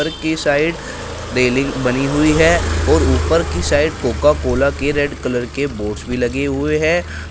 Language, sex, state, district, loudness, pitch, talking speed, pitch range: Hindi, male, Uttar Pradesh, Shamli, -17 LUFS, 140 Hz, 170 wpm, 125-150 Hz